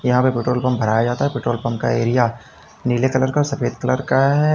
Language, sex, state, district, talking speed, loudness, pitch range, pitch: Hindi, male, Uttar Pradesh, Lalitpur, 250 wpm, -19 LUFS, 120-130 Hz, 125 Hz